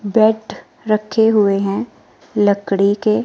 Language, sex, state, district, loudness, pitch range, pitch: Hindi, female, Himachal Pradesh, Shimla, -16 LUFS, 200-220 Hz, 215 Hz